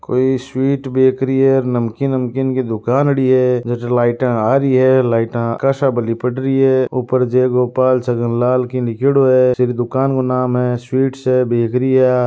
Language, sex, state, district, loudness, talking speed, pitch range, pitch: Marwari, male, Rajasthan, Nagaur, -15 LUFS, 165 wpm, 125-130 Hz, 130 Hz